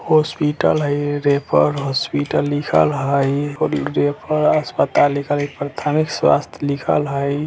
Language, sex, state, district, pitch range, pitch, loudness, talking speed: Bajjika, male, Bihar, Vaishali, 140-150 Hz, 145 Hz, -18 LUFS, 105 wpm